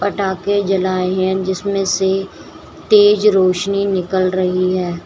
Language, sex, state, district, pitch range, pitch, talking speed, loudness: Hindi, female, Uttar Pradesh, Shamli, 185-200 Hz, 190 Hz, 120 wpm, -16 LUFS